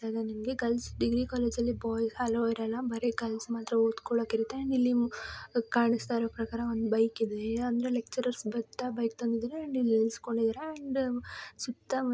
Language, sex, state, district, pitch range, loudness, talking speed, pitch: Kannada, male, Karnataka, Chamarajanagar, 225-245 Hz, -32 LUFS, 145 wpm, 235 Hz